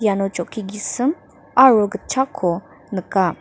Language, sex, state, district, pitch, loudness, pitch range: Garo, female, Meghalaya, North Garo Hills, 205 Hz, -19 LUFS, 190-255 Hz